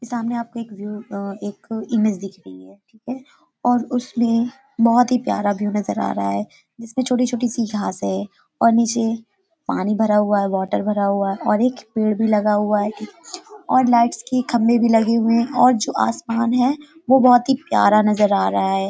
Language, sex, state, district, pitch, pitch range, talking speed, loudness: Hindi, female, Uttar Pradesh, Hamirpur, 230 Hz, 210-245 Hz, 210 wpm, -19 LUFS